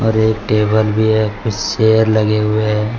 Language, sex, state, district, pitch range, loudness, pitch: Hindi, male, Jharkhand, Deoghar, 105-110 Hz, -15 LUFS, 110 Hz